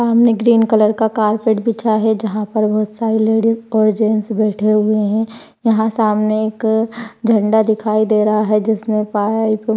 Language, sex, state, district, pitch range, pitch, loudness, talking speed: Hindi, female, Maharashtra, Pune, 215-225 Hz, 220 Hz, -15 LUFS, 170 wpm